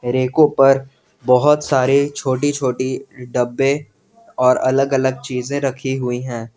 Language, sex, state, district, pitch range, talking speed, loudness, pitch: Hindi, male, Jharkhand, Garhwa, 125-140 Hz, 130 wpm, -17 LUFS, 130 Hz